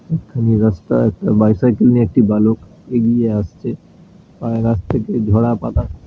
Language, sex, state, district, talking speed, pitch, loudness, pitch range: Bengali, male, West Bengal, Dakshin Dinajpur, 120 wpm, 110 Hz, -16 LUFS, 105-115 Hz